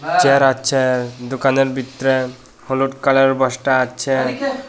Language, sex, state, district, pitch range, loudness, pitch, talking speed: Bengali, male, Tripura, West Tripura, 130-135 Hz, -17 LUFS, 130 Hz, 100 wpm